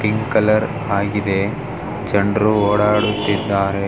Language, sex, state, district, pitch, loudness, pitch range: Kannada, male, Karnataka, Dharwad, 105 Hz, -18 LUFS, 100-105 Hz